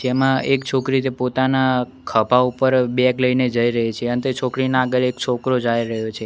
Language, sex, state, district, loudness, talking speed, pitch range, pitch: Gujarati, male, Gujarat, Gandhinagar, -19 LUFS, 190 wpm, 120-130 Hz, 125 Hz